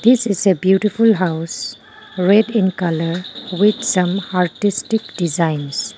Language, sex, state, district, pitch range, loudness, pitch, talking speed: English, female, Arunachal Pradesh, Lower Dibang Valley, 180-215 Hz, -17 LUFS, 190 Hz, 120 wpm